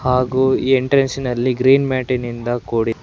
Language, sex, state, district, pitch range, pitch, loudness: Kannada, male, Karnataka, Bangalore, 120-130 Hz, 130 Hz, -17 LUFS